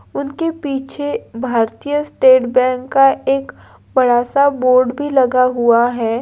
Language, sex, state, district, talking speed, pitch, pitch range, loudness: Hindi, female, Andhra Pradesh, Anantapur, 145 wpm, 255 Hz, 245-280 Hz, -15 LUFS